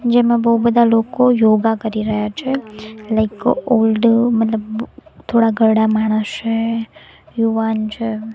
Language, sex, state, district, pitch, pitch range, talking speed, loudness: Gujarati, female, Gujarat, Gandhinagar, 225 Hz, 220-235 Hz, 120 wpm, -16 LUFS